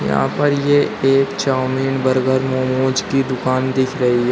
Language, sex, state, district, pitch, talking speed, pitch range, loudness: Hindi, male, Uttar Pradesh, Shamli, 130 Hz, 165 wpm, 130-135 Hz, -17 LUFS